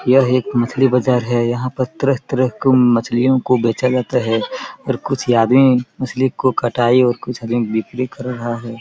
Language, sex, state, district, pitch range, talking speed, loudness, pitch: Hindi, male, Chhattisgarh, Korba, 120-130 Hz, 175 wpm, -17 LUFS, 125 Hz